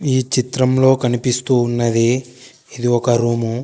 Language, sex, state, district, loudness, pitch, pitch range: Telugu, female, Telangana, Hyderabad, -17 LUFS, 125 Hz, 120-130 Hz